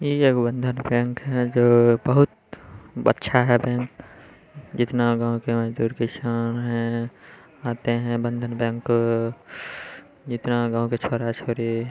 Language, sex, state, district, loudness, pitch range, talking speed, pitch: Maithili, male, Bihar, Samastipur, -23 LUFS, 115-125 Hz, 125 wpm, 120 Hz